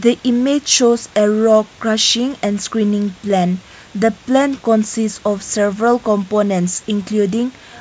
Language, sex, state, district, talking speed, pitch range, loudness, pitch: English, female, Nagaland, Kohima, 125 wpm, 205-235 Hz, -16 LUFS, 215 Hz